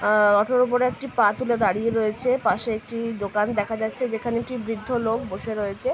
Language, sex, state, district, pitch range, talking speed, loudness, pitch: Bengali, female, West Bengal, Dakshin Dinajpur, 210-245 Hz, 220 wpm, -23 LUFS, 225 Hz